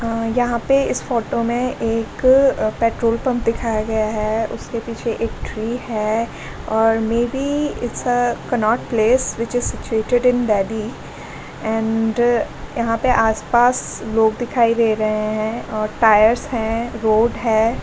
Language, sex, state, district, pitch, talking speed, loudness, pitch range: Hindi, female, Delhi, New Delhi, 230 Hz, 140 wpm, -19 LUFS, 220-240 Hz